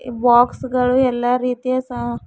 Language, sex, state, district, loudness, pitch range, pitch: Kannada, female, Karnataka, Bidar, -18 LUFS, 240-255 Hz, 250 Hz